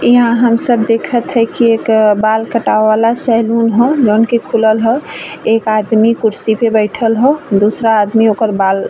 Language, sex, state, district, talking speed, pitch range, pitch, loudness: Bhojpuri, female, Uttar Pradesh, Ghazipur, 180 wpm, 220-235 Hz, 225 Hz, -12 LUFS